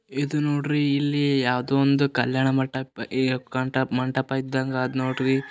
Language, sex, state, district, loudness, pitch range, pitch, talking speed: Kannada, male, Karnataka, Gulbarga, -24 LUFS, 130-140 Hz, 130 Hz, 130 wpm